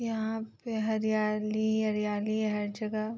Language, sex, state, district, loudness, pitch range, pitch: Hindi, female, Uttar Pradesh, Jyotiba Phule Nagar, -31 LUFS, 215-220 Hz, 215 Hz